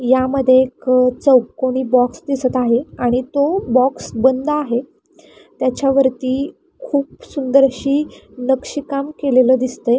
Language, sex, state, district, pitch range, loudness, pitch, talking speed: Marathi, female, Maharashtra, Pune, 255-280 Hz, -17 LUFS, 260 Hz, 110 wpm